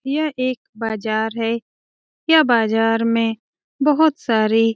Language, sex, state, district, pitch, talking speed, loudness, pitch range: Hindi, female, Bihar, Jamui, 230 Hz, 125 wpm, -19 LUFS, 225-270 Hz